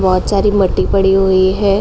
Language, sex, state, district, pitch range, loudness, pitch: Hindi, female, Uttar Pradesh, Jalaun, 190-200 Hz, -13 LUFS, 195 Hz